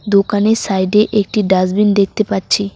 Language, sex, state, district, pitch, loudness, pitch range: Bengali, female, West Bengal, Cooch Behar, 200 Hz, -14 LUFS, 195-210 Hz